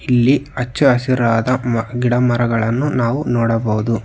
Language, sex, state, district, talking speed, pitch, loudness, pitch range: Kannada, male, Karnataka, Bangalore, 120 wpm, 120 Hz, -16 LUFS, 115-130 Hz